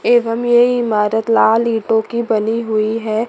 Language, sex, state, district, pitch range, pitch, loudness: Hindi, female, Chandigarh, Chandigarh, 220-235 Hz, 230 Hz, -15 LUFS